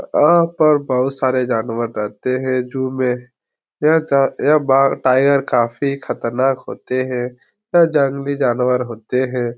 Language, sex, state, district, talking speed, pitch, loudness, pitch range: Hindi, male, Uttar Pradesh, Etah, 150 wpm, 130 Hz, -17 LUFS, 125-140 Hz